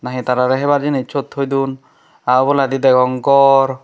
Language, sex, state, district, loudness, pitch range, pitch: Chakma, male, Tripura, Dhalai, -15 LUFS, 130-140 Hz, 135 Hz